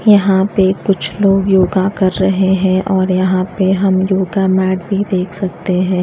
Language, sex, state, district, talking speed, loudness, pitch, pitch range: Hindi, female, Odisha, Nuapada, 180 wpm, -14 LUFS, 190 Hz, 185-195 Hz